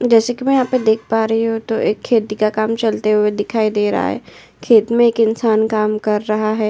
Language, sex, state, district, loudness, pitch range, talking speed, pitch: Hindi, female, Uttar Pradesh, Hamirpur, -16 LUFS, 215-230 Hz, 250 wpm, 220 Hz